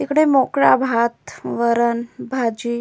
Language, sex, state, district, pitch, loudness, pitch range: Marathi, female, Maharashtra, Solapur, 235 Hz, -18 LUFS, 235-265 Hz